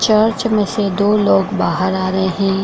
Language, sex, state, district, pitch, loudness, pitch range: Hindi, female, Bihar, Kishanganj, 195 Hz, -16 LUFS, 190-210 Hz